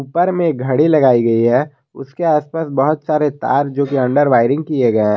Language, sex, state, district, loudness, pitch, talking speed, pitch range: Hindi, male, Jharkhand, Garhwa, -15 LUFS, 140 Hz, 210 wpm, 130-155 Hz